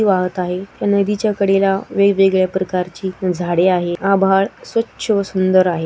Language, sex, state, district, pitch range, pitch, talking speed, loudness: Marathi, female, Maharashtra, Sindhudurg, 180-200 Hz, 195 Hz, 145 wpm, -17 LUFS